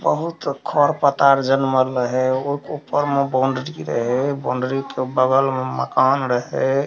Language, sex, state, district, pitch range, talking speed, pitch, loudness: Maithili, male, Bihar, Darbhanga, 130-140 Hz, 140 wpm, 135 Hz, -19 LUFS